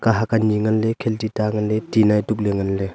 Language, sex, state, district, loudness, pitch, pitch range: Wancho, male, Arunachal Pradesh, Longding, -20 LUFS, 110 Hz, 105-110 Hz